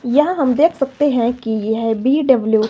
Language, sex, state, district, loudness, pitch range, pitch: Hindi, female, Himachal Pradesh, Shimla, -16 LUFS, 225-285 Hz, 255 Hz